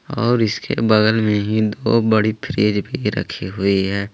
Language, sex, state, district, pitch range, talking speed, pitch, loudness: Hindi, male, Jharkhand, Ranchi, 105-115 Hz, 160 wpm, 110 Hz, -18 LUFS